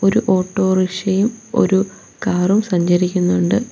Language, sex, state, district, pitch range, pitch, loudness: Malayalam, female, Kerala, Kollam, 180-195 Hz, 190 Hz, -17 LUFS